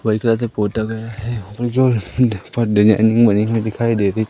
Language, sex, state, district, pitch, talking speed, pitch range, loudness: Hindi, male, Madhya Pradesh, Katni, 110 Hz, 180 wpm, 105-115 Hz, -17 LUFS